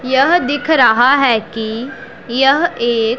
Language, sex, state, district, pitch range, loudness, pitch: Hindi, female, Punjab, Pathankot, 235-285 Hz, -13 LUFS, 260 Hz